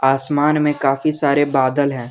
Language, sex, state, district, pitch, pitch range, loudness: Hindi, male, Jharkhand, Garhwa, 140 Hz, 135-150 Hz, -17 LUFS